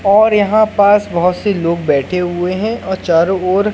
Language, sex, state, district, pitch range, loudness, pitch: Hindi, male, Madhya Pradesh, Katni, 175-205 Hz, -14 LUFS, 190 Hz